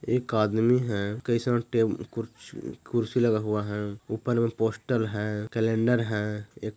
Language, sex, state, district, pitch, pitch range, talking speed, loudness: Hindi, male, Bihar, Jahanabad, 110 Hz, 105-120 Hz, 150 wpm, -27 LUFS